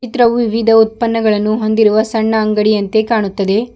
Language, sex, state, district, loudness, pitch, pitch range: Kannada, female, Karnataka, Bidar, -13 LUFS, 220 Hz, 215-230 Hz